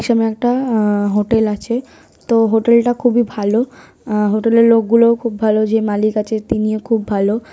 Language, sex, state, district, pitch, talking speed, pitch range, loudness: Bengali, female, West Bengal, North 24 Parganas, 225 Hz, 200 wpm, 215-235 Hz, -15 LUFS